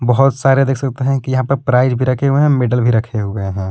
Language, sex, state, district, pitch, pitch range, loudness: Hindi, male, Jharkhand, Palamu, 130 Hz, 120-135 Hz, -15 LUFS